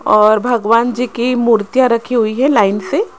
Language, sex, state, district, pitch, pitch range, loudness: Hindi, female, Rajasthan, Jaipur, 235 Hz, 220-255 Hz, -13 LUFS